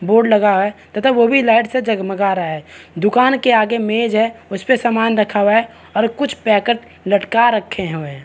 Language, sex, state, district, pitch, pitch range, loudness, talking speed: Hindi, male, Chhattisgarh, Bastar, 220 Hz, 200-235 Hz, -16 LUFS, 195 wpm